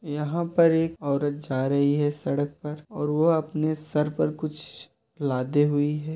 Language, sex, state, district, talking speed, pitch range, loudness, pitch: Hindi, male, Uttar Pradesh, Muzaffarnagar, 175 wpm, 145-155 Hz, -25 LUFS, 150 Hz